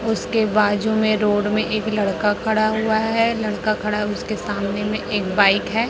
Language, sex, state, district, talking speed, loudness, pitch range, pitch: Hindi, female, Chhattisgarh, Raipur, 195 wpm, -20 LUFS, 205-220 Hz, 215 Hz